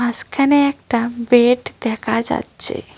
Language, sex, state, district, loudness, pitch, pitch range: Bengali, female, West Bengal, Cooch Behar, -17 LUFS, 240 Hz, 230-255 Hz